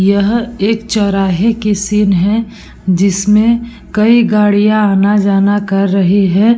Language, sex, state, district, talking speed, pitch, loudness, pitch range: Hindi, female, Bihar, Vaishali, 120 wpm, 205 Hz, -12 LUFS, 195-220 Hz